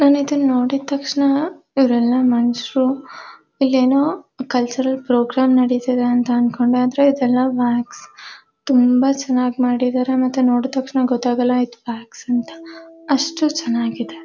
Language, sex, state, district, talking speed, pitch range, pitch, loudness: Kannada, female, Karnataka, Mysore, 115 wpm, 245-275 Hz, 255 Hz, -18 LUFS